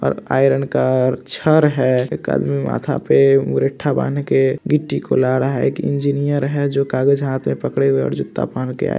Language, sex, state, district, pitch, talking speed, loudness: Hindi, male, Jharkhand, Jamtara, 130 Hz, 220 wpm, -17 LUFS